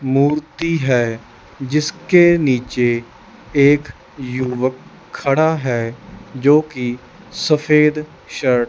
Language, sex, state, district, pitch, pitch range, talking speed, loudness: Hindi, male, Chandigarh, Chandigarh, 140 Hz, 125-155 Hz, 85 wpm, -17 LUFS